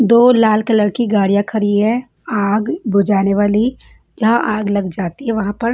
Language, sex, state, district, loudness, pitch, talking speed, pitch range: Hindi, female, Bihar, Patna, -15 LUFS, 215 Hz, 175 wpm, 205-235 Hz